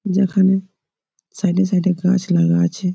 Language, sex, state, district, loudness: Bengali, male, West Bengal, Malda, -17 LUFS